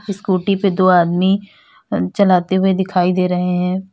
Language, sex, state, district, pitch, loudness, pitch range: Hindi, female, Uttar Pradesh, Lalitpur, 185 Hz, -16 LUFS, 180-190 Hz